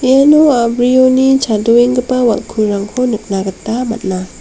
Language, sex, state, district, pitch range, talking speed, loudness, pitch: Garo, female, Meghalaya, West Garo Hills, 215-255 Hz, 95 wpm, -12 LUFS, 240 Hz